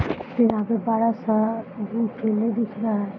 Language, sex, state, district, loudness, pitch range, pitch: Hindi, female, Bihar, Araria, -23 LUFS, 215-230 Hz, 225 Hz